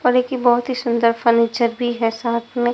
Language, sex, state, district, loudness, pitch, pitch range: Hindi, female, Punjab, Pathankot, -18 LUFS, 240 Hz, 235-245 Hz